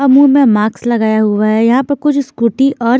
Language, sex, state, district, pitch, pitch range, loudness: Hindi, female, Punjab, Fazilka, 240 Hz, 220-275 Hz, -12 LUFS